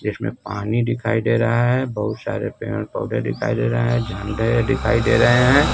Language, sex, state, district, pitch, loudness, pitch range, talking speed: Hindi, male, Bihar, Kaimur, 115 Hz, -20 LUFS, 105-120 Hz, 200 wpm